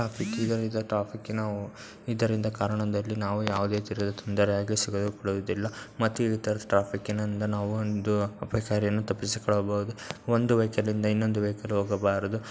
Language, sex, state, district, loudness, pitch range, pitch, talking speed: Kannada, male, Karnataka, Dakshina Kannada, -29 LUFS, 100-110 Hz, 105 Hz, 90 wpm